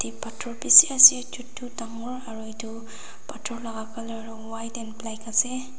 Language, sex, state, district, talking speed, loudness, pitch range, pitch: Nagamese, female, Nagaland, Dimapur, 145 wpm, -16 LUFS, 225-245 Hz, 230 Hz